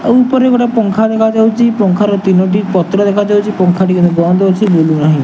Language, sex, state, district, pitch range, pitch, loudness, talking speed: Odia, male, Odisha, Nuapada, 185-220 Hz, 205 Hz, -11 LUFS, 215 wpm